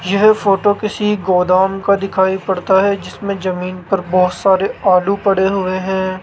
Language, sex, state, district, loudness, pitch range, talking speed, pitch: Hindi, male, Rajasthan, Jaipur, -15 LUFS, 185-200 Hz, 165 wpm, 190 Hz